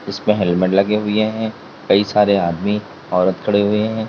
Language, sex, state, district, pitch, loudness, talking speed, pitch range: Hindi, male, Uttar Pradesh, Lalitpur, 105 Hz, -17 LUFS, 175 wpm, 95-105 Hz